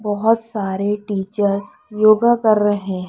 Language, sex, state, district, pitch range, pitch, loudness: Hindi, female, Chhattisgarh, Raipur, 200-215 Hz, 205 Hz, -18 LUFS